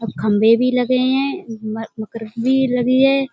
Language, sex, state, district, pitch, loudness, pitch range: Hindi, female, Uttar Pradesh, Budaun, 245 Hz, -17 LUFS, 220-260 Hz